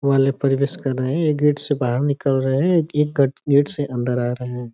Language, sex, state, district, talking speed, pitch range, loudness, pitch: Hindi, male, Uttar Pradesh, Ghazipur, 240 wpm, 130-145 Hz, -19 LUFS, 140 Hz